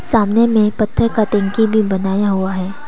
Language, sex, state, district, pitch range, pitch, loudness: Hindi, female, Arunachal Pradesh, Papum Pare, 195-220 Hz, 210 Hz, -15 LUFS